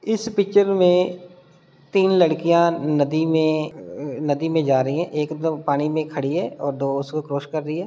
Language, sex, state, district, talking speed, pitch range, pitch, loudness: Hindi, male, Bihar, Muzaffarpur, 200 wpm, 150-180 Hz, 160 Hz, -21 LUFS